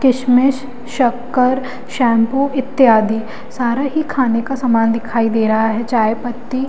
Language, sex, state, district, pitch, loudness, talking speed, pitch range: Hindi, female, Delhi, New Delhi, 245 Hz, -16 LUFS, 135 wpm, 230-260 Hz